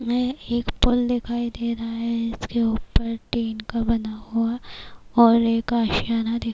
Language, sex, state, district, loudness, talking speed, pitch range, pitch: Urdu, female, Bihar, Kishanganj, -23 LUFS, 145 wpm, 230-240 Hz, 230 Hz